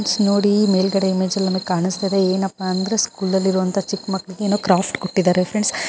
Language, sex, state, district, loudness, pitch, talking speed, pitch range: Kannada, female, Karnataka, Gulbarga, -19 LUFS, 190 Hz, 195 wpm, 185-200 Hz